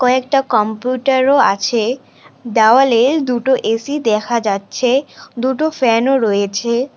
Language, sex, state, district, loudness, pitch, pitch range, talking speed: Bengali, female, West Bengal, Cooch Behar, -15 LUFS, 250 Hz, 225-265 Hz, 110 wpm